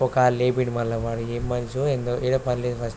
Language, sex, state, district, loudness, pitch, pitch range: Telugu, male, Andhra Pradesh, Krishna, -24 LUFS, 125 Hz, 120-130 Hz